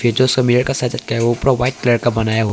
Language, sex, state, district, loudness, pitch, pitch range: Hindi, male, Arunachal Pradesh, Longding, -16 LUFS, 120 Hz, 115-130 Hz